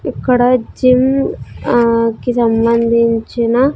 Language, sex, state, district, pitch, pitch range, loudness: Telugu, female, Andhra Pradesh, Sri Satya Sai, 235 Hz, 230-250 Hz, -13 LUFS